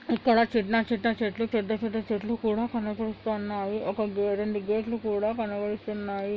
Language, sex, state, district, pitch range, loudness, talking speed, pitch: Telugu, female, Andhra Pradesh, Anantapur, 210-230 Hz, -28 LUFS, 140 wpm, 220 Hz